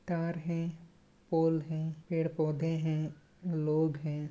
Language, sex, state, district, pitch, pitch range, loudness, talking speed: Hindi, male, Goa, North and South Goa, 160 Hz, 155-170 Hz, -34 LUFS, 110 wpm